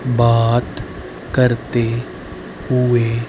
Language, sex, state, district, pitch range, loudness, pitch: Hindi, male, Haryana, Rohtak, 115-125 Hz, -17 LUFS, 120 Hz